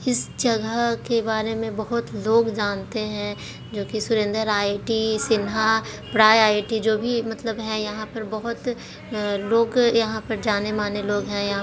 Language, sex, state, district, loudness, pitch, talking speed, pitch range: Hindi, female, Bihar, Jahanabad, -23 LUFS, 220 Hz, 140 wpm, 210-225 Hz